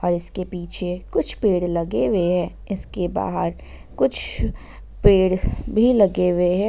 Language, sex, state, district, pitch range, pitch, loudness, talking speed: Hindi, female, Jharkhand, Ranchi, 170-195 Hz, 180 Hz, -21 LUFS, 135 wpm